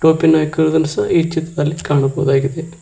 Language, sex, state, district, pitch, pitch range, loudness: Kannada, male, Karnataka, Koppal, 160 Hz, 145-165 Hz, -16 LUFS